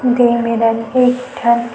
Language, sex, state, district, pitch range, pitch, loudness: Chhattisgarhi, female, Chhattisgarh, Sukma, 230-250 Hz, 235 Hz, -15 LUFS